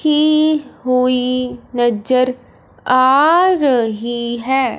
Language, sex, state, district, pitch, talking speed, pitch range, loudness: Hindi, male, Punjab, Fazilka, 255 Hz, 75 wpm, 245-290 Hz, -15 LUFS